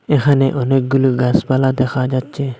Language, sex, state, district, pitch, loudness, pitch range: Bengali, male, Assam, Hailakandi, 130 Hz, -16 LUFS, 130-140 Hz